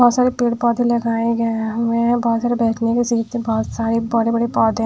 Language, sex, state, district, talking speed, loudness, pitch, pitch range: Hindi, female, Punjab, Pathankot, 210 wpm, -18 LUFS, 230 Hz, 230-240 Hz